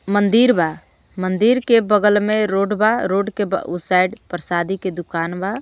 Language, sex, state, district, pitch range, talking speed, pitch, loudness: Bhojpuri, female, Jharkhand, Palamu, 180-215 Hz, 190 wpm, 195 Hz, -18 LUFS